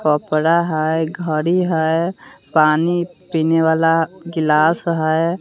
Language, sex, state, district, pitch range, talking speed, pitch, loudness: Hindi, female, Bihar, West Champaran, 155-170 Hz, 100 wpm, 160 Hz, -17 LUFS